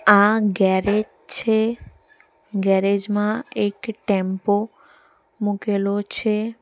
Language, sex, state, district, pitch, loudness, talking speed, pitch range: Gujarati, female, Gujarat, Valsad, 210 Hz, -21 LUFS, 80 wpm, 200-230 Hz